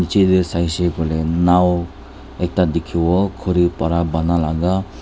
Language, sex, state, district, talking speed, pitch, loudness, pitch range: Nagamese, male, Nagaland, Dimapur, 130 wpm, 85 Hz, -18 LUFS, 80-90 Hz